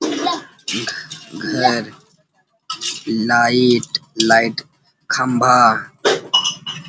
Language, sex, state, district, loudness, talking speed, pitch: Hindi, male, Bihar, Gaya, -17 LUFS, 45 wpm, 125 Hz